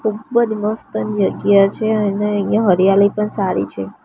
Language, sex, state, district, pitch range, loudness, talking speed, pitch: Gujarati, female, Gujarat, Gandhinagar, 190-215 Hz, -16 LUFS, 150 wpm, 205 Hz